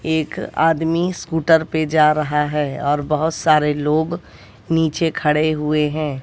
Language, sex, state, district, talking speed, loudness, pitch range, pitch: Hindi, female, Bihar, West Champaran, 145 wpm, -18 LUFS, 150-160 Hz, 155 Hz